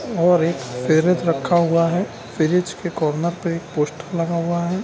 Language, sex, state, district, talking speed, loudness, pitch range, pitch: Hindi, male, Bihar, Darbhanga, 185 wpm, -20 LUFS, 165-175 Hz, 170 Hz